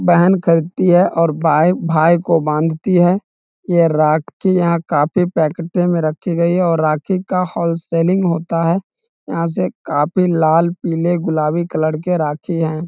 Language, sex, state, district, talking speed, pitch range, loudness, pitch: Hindi, male, Bihar, East Champaran, 155 wpm, 160-180 Hz, -16 LUFS, 170 Hz